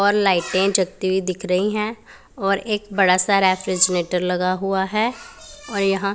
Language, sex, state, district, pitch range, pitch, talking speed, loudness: Hindi, female, Punjab, Pathankot, 185-205 Hz, 195 Hz, 165 wpm, -20 LUFS